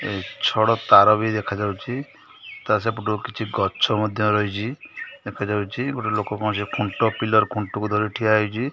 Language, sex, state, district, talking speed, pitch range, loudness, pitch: Odia, male, Odisha, Khordha, 135 wpm, 105-115 Hz, -22 LUFS, 105 Hz